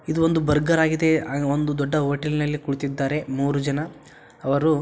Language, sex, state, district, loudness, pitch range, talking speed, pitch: Kannada, male, Karnataka, Shimoga, -23 LUFS, 140-155 Hz, 150 wpm, 150 Hz